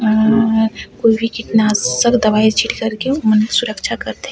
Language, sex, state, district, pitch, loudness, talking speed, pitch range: Chhattisgarhi, female, Chhattisgarh, Sarguja, 220 Hz, -15 LUFS, 180 wpm, 215-230 Hz